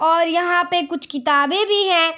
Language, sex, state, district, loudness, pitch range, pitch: Hindi, female, Bihar, Araria, -18 LUFS, 320-350 Hz, 335 Hz